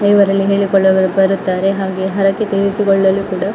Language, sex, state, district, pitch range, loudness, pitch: Kannada, female, Karnataka, Dakshina Kannada, 190-200 Hz, -14 LUFS, 195 Hz